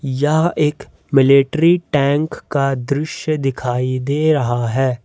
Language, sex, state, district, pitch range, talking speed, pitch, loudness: Hindi, male, Jharkhand, Ranchi, 130-155 Hz, 120 wpm, 140 Hz, -17 LUFS